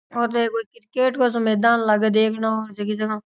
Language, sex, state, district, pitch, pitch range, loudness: Rajasthani, male, Rajasthan, Nagaur, 220 Hz, 215-235 Hz, -21 LUFS